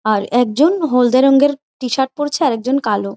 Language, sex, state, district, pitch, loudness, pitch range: Bengali, female, West Bengal, Malda, 265 Hz, -15 LUFS, 245-290 Hz